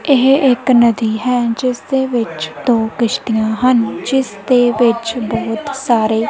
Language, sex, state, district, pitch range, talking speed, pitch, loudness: Punjabi, female, Punjab, Kapurthala, 225-255 Hz, 135 wpm, 235 Hz, -15 LUFS